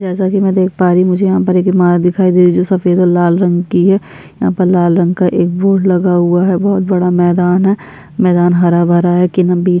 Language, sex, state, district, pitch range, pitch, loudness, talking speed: Hindi, female, Bihar, Kishanganj, 175-185 Hz, 180 Hz, -11 LUFS, 255 wpm